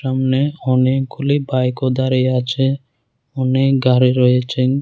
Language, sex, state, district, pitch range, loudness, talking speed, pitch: Bengali, male, Tripura, West Tripura, 125-135 Hz, -16 LUFS, 100 wpm, 130 Hz